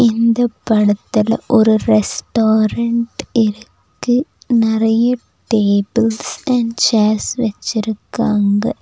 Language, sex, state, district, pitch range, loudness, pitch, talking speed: Tamil, female, Tamil Nadu, Nilgiris, 215-235 Hz, -16 LUFS, 225 Hz, 70 wpm